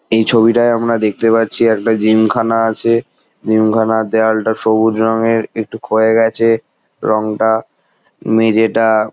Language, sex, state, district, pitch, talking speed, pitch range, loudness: Bengali, male, West Bengal, Jalpaiguri, 110 Hz, 130 wpm, 110-115 Hz, -14 LUFS